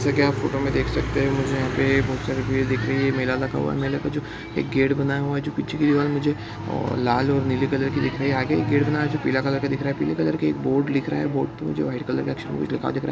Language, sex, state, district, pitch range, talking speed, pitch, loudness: Hindi, male, Bihar, Bhagalpur, 130-140 Hz, 310 wpm, 135 Hz, -23 LUFS